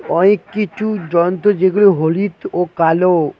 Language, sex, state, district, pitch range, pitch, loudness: Bengali, male, West Bengal, Cooch Behar, 170-205 Hz, 185 Hz, -15 LUFS